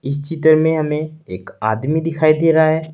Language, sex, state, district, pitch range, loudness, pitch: Hindi, male, Uttar Pradesh, Saharanpur, 145-160 Hz, -16 LUFS, 155 Hz